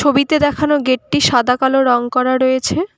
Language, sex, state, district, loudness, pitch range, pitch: Bengali, female, West Bengal, Cooch Behar, -14 LUFS, 250-290 Hz, 260 Hz